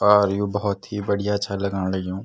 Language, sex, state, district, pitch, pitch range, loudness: Garhwali, male, Uttarakhand, Tehri Garhwal, 100 Hz, 100-105 Hz, -23 LUFS